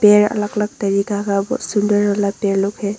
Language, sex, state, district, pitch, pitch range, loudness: Hindi, female, Arunachal Pradesh, Longding, 205 Hz, 200-210 Hz, -18 LUFS